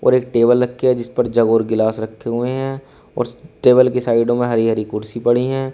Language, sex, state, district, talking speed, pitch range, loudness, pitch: Hindi, male, Uttar Pradesh, Shamli, 240 wpm, 115-125 Hz, -17 LUFS, 120 Hz